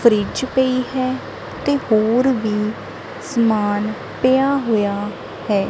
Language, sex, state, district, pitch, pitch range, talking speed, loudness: Punjabi, female, Punjab, Kapurthala, 230 Hz, 210-260 Hz, 105 wpm, -19 LUFS